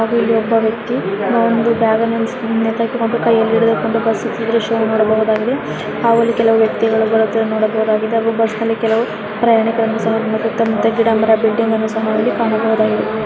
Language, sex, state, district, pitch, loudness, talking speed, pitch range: Kannada, female, Karnataka, Bellary, 225 Hz, -15 LUFS, 155 wpm, 220-230 Hz